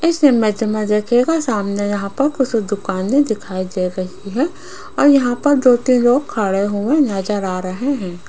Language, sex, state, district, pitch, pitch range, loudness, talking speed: Hindi, female, Rajasthan, Jaipur, 220 Hz, 200-275 Hz, -17 LUFS, 180 wpm